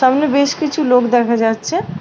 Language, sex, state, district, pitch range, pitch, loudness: Bengali, female, West Bengal, Paschim Medinipur, 240-295 Hz, 255 Hz, -15 LUFS